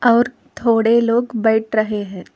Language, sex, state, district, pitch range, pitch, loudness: Hindi, female, Telangana, Hyderabad, 220-235 Hz, 230 Hz, -17 LUFS